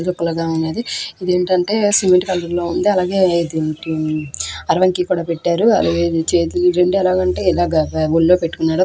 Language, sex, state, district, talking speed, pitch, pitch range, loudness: Telugu, female, Andhra Pradesh, Krishna, 140 wpm, 175 Hz, 165-185 Hz, -17 LUFS